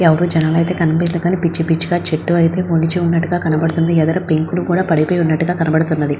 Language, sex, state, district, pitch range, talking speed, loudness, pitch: Telugu, female, Andhra Pradesh, Visakhapatnam, 160-175 Hz, 165 wpm, -16 LUFS, 165 Hz